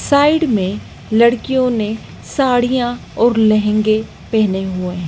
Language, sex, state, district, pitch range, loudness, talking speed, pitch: Hindi, female, Madhya Pradesh, Dhar, 210-250 Hz, -16 LUFS, 120 wpm, 225 Hz